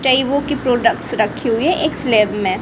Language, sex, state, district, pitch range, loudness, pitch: Hindi, female, Bihar, Kaimur, 230-290 Hz, -17 LUFS, 260 Hz